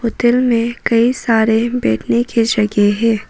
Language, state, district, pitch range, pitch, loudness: Hindi, Arunachal Pradesh, Papum Pare, 220-240 Hz, 230 Hz, -15 LUFS